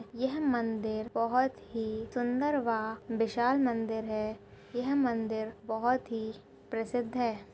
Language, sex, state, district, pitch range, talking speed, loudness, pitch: Hindi, female, Chhattisgarh, Bastar, 220-245 Hz, 120 wpm, -32 LUFS, 230 Hz